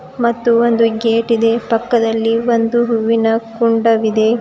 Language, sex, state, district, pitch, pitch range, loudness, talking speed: Kannada, female, Karnataka, Bidar, 230 Hz, 225-235 Hz, -14 LUFS, 110 wpm